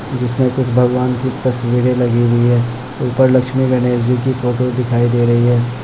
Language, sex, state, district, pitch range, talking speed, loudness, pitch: Hindi, male, Bihar, Muzaffarpur, 120-125 Hz, 195 wpm, -15 LUFS, 125 Hz